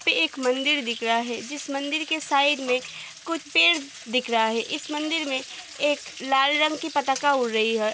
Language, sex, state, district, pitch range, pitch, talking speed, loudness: Hindi, female, Uttar Pradesh, Hamirpur, 250-300 Hz, 280 Hz, 205 wpm, -24 LUFS